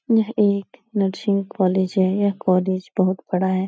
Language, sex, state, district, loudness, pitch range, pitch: Hindi, female, Bihar, Supaul, -21 LUFS, 185-205 Hz, 195 Hz